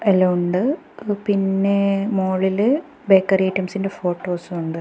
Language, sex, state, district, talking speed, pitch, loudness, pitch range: Malayalam, female, Kerala, Kasaragod, 110 wpm, 195 Hz, -20 LUFS, 185-205 Hz